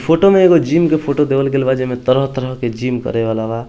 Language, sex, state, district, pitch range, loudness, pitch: Hindi, male, Bihar, East Champaran, 125-155 Hz, -15 LUFS, 130 Hz